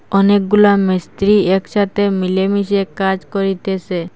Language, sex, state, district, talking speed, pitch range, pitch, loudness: Bengali, female, Assam, Hailakandi, 85 wpm, 190-200 Hz, 195 Hz, -15 LUFS